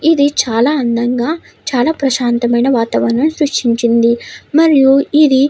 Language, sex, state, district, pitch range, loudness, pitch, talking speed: Telugu, female, Andhra Pradesh, Krishna, 240-295 Hz, -13 LUFS, 265 Hz, 110 wpm